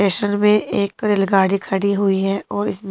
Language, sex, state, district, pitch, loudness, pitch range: Hindi, female, Himachal Pradesh, Shimla, 200 Hz, -18 LUFS, 195-205 Hz